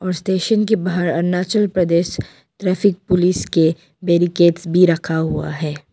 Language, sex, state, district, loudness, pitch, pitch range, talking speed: Hindi, female, Arunachal Pradesh, Papum Pare, -17 LUFS, 180 Hz, 165-185 Hz, 130 wpm